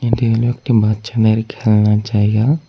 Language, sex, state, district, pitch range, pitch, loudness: Bengali, male, West Bengal, Cooch Behar, 105-120 Hz, 115 Hz, -15 LUFS